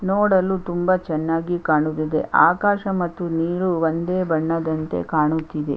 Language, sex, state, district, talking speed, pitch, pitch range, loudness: Kannada, female, Karnataka, Chamarajanagar, 105 wpm, 165 Hz, 160-185 Hz, -21 LUFS